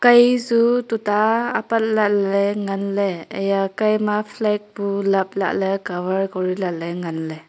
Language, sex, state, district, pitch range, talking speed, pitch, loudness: Wancho, female, Arunachal Pradesh, Longding, 190-215 Hz, 135 wpm, 200 Hz, -20 LUFS